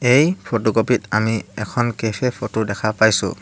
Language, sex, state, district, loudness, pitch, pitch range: Assamese, male, Assam, Hailakandi, -19 LUFS, 110 Hz, 110-125 Hz